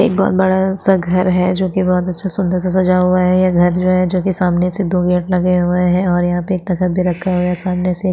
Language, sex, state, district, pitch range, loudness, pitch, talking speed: Hindi, female, Chhattisgarh, Sukma, 180-185 Hz, -15 LUFS, 180 Hz, 280 wpm